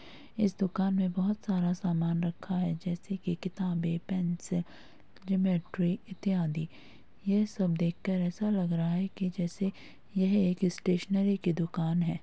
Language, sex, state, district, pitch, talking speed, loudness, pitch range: Hindi, female, Uttar Pradesh, Muzaffarnagar, 185 Hz, 140 wpm, -31 LUFS, 175-195 Hz